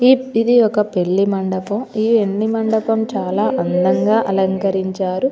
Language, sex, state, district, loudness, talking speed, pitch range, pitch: Telugu, female, Telangana, Nalgonda, -17 LUFS, 125 wpm, 190-225 Hz, 210 Hz